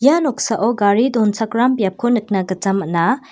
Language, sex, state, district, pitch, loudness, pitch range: Garo, female, Meghalaya, West Garo Hills, 225 Hz, -17 LUFS, 195-250 Hz